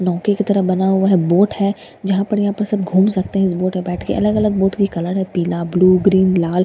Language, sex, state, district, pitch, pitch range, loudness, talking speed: Hindi, female, Bihar, Katihar, 190 Hz, 185-200 Hz, -16 LUFS, 270 wpm